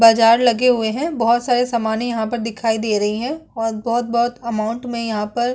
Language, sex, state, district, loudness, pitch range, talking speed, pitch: Hindi, female, Chhattisgarh, Kabirdham, -19 LUFS, 225-240 Hz, 215 wpm, 235 Hz